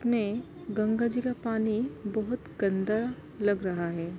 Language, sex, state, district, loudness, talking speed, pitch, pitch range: Hindi, female, Uttar Pradesh, Varanasi, -30 LUFS, 145 wpm, 215 Hz, 205-235 Hz